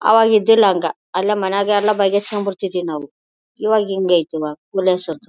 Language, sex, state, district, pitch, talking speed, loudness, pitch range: Kannada, female, Karnataka, Bellary, 195 Hz, 160 wpm, -17 LUFS, 180-210 Hz